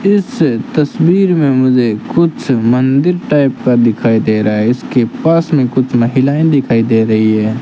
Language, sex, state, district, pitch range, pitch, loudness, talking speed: Hindi, male, Rajasthan, Bikaner, 115-160 Hz, 130 Hz, -12 LUFS, 165 wpm